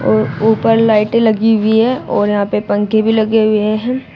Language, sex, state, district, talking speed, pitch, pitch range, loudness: Hindi, female, Uttar Pradesh, Shamli, 200 wpm, 220 Hz, 210-225 Hz, -13 LUFS